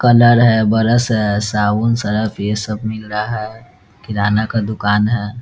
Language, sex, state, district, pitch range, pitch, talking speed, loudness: Hindi, male, Bihar, Muzaffarpur, 105-115 Hz, 110 Hz, 165 wpm, -16 LUFS